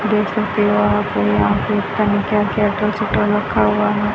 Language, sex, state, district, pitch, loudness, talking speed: Hindi, female, Haryana, Charkhi Dadri, 205 Hz, -17 LUFS, 215 wpm